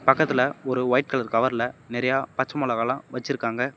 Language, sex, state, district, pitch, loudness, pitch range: Tamil, male, Tamil Nadu, Namakkal, 130 Hz, -24 LUFS, 125-135 Hz